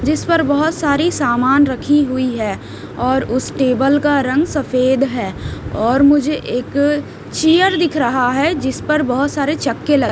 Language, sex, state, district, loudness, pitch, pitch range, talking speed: Hindi, female, Himachal Pradesh, Shimla, -16 LUFS, 285 Hz, 260-300 Hz, 165 wpm